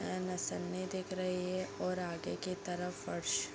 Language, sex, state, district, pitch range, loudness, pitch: Hindi, female, Chhattisgarh, Bilaspur, 175-185 Hz, -38 LUFS, 180 Hz